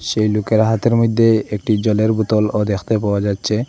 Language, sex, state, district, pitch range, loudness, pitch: Bengali, male, Assam, Hailakandi, 105-110 Hz, -16 LUFS, 110 Hz